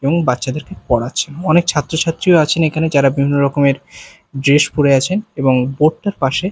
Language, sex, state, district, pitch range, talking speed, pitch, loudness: Bengali, male, Bihar, Katihar, 135-165 Hz, 155 wpm, 145 Hz, -15 LUFS